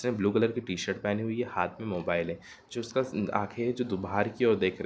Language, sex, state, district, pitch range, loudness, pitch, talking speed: Hindi, male, Bihar, Gopalganj, 95-120 Hz, -30 LUFS, 105 Hz, 270 wpm